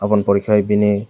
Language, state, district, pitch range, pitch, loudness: Kokborok, Tripura, West Tripura, 100-105 Hz, 105 Hz, -16 LUFS